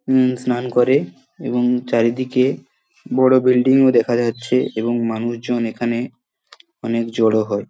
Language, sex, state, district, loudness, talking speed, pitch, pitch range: Bengali, male, West Bengal, Paschim Medinipur, -18 LUFS, 125 wpm, 125 Hz, 115-130 Hz